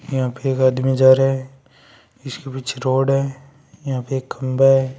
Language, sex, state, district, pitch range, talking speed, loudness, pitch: Marwari, male, Rajasthan, Churu, 130-135 Hz, 195 wpm, -19 LUFS, 135 Hz